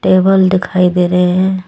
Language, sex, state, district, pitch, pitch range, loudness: Hindi, female, Jharkhand, Deoghar, 185 Hz, 180-185 Hz, -11 LUFS